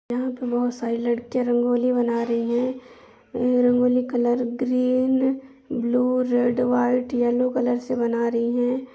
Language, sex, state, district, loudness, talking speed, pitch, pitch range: Hindi, female, Uttar Pradesh, Jyotiba Phule Nagar, -22 LUFS, 140 wpm, 245 Hz, 240-250 Hz